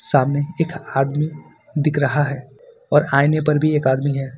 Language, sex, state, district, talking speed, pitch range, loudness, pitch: Hindi, male, Jharkhand, Ranchi, 180 wpm, 140-155 Hz, -19 LUFS, 145 Hz